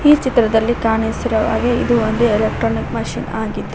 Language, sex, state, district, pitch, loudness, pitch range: Kannada, female, Karnataka, Koppal, 225 Hz, -17 LUFS, 220-240 Hz